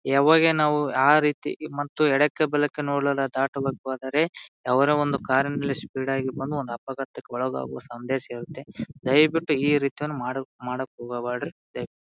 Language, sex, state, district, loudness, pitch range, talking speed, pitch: Kannada, male, Karnataka, Bijapur, -24 LUFS, 130-150 Hz, 145 wpm, 140 Hz